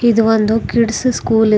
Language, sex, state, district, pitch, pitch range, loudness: Kannada, female, Karnataka, Bidar, 225 Hz, 220-235 Hz, -15 LUFS